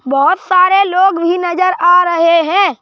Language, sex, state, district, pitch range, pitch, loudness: Hindi, male, Madhya Pradesh, Bhopal, 335-370 Hz, 360 Hz, -11 LUFS